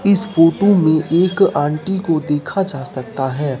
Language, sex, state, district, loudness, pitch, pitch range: Hindi, male, Bihar, Katihar, -16 LUFS, 160 Hz, 145-190 Hz